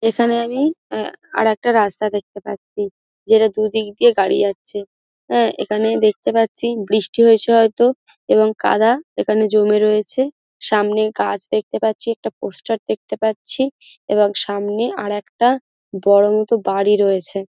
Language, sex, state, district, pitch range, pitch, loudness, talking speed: Bengali, female, West Bengal, Dakshin Dinajpur, 205-230 Hz, 215 Hz, -17 LUFS, 140 wpm